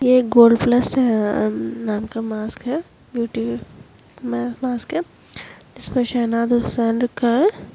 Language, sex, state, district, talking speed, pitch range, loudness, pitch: Hindi, female, Bihar, Saran, 115 wpm, 220-250 Hz, -19 LUFS, 240 Hz